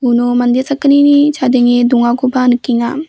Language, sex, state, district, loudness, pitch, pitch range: Garo, female, Meghalaya, West Garo Hills, -11 LUFS, 250 Hz, 245-280 Hz